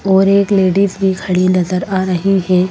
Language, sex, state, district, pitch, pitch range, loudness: Hindi, female, Madhya Pradesh, Bhopal, 190 Hz, 185-195 Hz, -14 LUFS